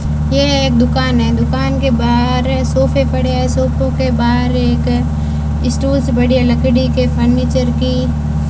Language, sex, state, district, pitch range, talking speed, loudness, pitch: Hindi, female, Rajasthan, Bikaner, 75-80 Hz, 140 wpm, -14 LUFS, 75 Hz